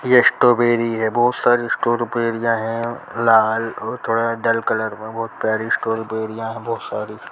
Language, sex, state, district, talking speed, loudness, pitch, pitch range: Hindi, male, Bihar, Jahanabad, 155 wpm, -19 LUFS, 115 Hz, 115-120 Hz